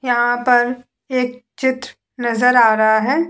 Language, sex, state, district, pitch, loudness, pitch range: Hindi, female, Bihar, Vaishali, 245 Hz, -16 LUFS, 240-255 Hz